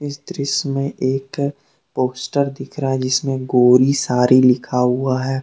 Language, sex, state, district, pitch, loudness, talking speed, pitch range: Hindi, male, Jharkhand, Deoghar, 135 Hz, -18 LUFS, 155 wpm, 130-140 Hz